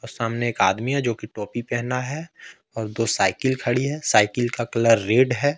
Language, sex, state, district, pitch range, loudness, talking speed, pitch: Hindi, male, Jharkhand, Ranchi, 115-130 Hz, -22 LUFS, 205 wpm, 120 Hz